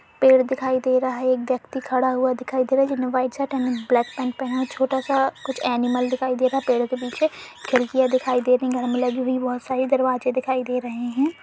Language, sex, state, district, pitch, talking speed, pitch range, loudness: Hindi, female, Uttar Pradesh, Budaun, 255 Hz, 255 wpm, 250-265 Hz, -22 LUFS